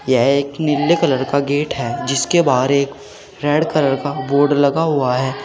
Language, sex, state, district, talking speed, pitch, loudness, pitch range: Hindi, male, Uttar Pradesh, Saharanpur, 185 wpm, 140 Hz, -17 LUFS, 135-150 Hz